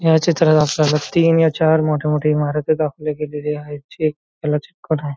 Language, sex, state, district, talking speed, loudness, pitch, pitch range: Marathi, male, Maharashtra, Nagpur, 185 wpm, -18 LUFS, 150 Hz, 150-160 Hz